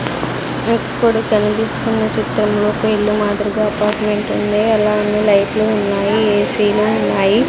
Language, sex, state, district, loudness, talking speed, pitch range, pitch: Telugu, female, Andhra Pradesh, Sri Satya Sai, -16 LUFS, 105 wpm, 210-215 Hz, 210 Hz